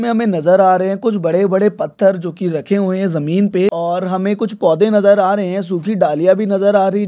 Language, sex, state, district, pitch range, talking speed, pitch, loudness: Hindi, male, Maharashtra, Nagpur, 185-205 Hz, 255 wpm, 195 Hz, -15 LUFS